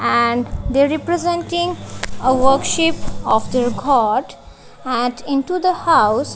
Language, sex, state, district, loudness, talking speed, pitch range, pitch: English, female, Punjab, Kapurthala, -17 LUFS, 125 wpm, 250-345 Hz, 280 Hz